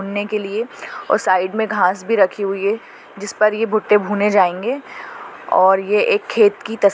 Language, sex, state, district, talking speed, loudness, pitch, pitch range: Hindi, female, Maharashtra, Nagpur, 200 wpm, -17 LUFS, 210 Hz, 195-225 Hz